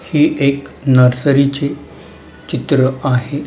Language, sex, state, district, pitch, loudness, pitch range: Marathi, male, Maharashtra, Mumbai Suburban, 140 Hz, -15 LUFS, 130-145 Hz